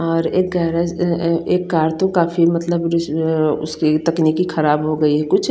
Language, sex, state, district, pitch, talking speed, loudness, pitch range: Hindi, female, Chandigarh, Chandigarh, 165 Hz, 205 wpm, -17 LUFS, 155-170 Hz